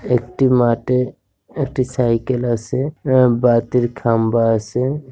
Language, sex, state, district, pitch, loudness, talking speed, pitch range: Bengali, male, West Bengal, Jhargram, 125 Hz, -17 LUFS, 115 wpm, 115-130 Hz